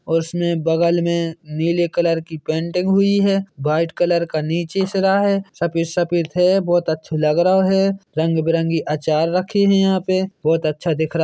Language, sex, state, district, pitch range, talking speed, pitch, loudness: Hindi, male, Chhattisgarh, Bilaspur, 160-190 Hz, 185 wpm, 170 Hz, -18 LUFS